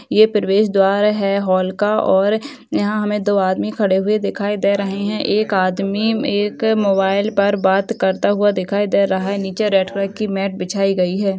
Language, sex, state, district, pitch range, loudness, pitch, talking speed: Hindi, female, Maharashtra, Nagpur, 195-210 Hz, -17 LUFS, 200 Hz, 195 wpm